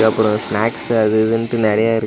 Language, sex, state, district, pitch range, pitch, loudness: Tamil, male, Tamil Nadu, Namakkal, 110-115 Hz, 110 Hz, -16 LUFS